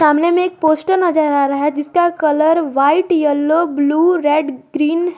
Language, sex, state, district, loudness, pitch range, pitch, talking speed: Hindi, female, Jharkhand, Garhwa, -15 LUFS, 295-340 Hz, 310 Hz, 185 wpm